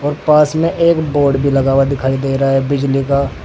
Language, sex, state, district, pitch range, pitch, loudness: Hindi, male, Uttar Pradesh, Saharanpur, 135-150 Hz, 140 Hz, -14 LUFS